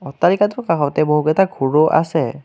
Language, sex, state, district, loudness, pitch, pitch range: Assamese, male, Assam, Kamrup Metropolitan, -16 LUFS, 155 Hz, 145-175 Hz